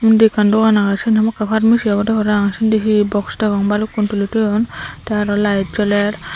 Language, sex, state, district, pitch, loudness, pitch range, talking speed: Chakma, female, Tripura, Dhalai, 210 Hz, -16 LUFS, 205-220 Hz, 200 wpm